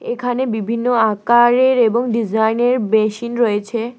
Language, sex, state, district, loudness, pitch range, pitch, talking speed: Bengali, female, West Bengal, Alipurduar, -16 LUFS, 220-240 Hz, 235 Hz, 105 wpm